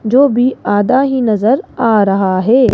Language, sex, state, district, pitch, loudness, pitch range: Hindi, female, Rajasthan, Jaipur, 235 Hz, -12 LUFS, 205-260 Hz